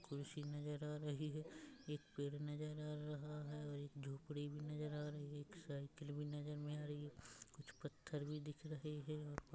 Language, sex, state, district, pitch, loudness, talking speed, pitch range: Hindi, female, Chhattisgarh, Rajnandgaon, 150 Hz, -50 LUFS, 200 wpm, 145-150 Hz